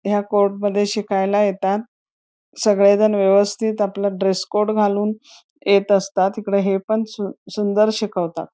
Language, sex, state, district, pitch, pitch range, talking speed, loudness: Marathi, female, Karnataka, Belgaum, 205 Hz, 195-210 Hz, 125 wpm, -19 LUFS